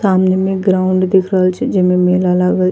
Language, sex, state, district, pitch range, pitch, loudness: Angika, female, Bihar, Bhagalpur, 185-190 Hz, 185 Hz, -13 LUFS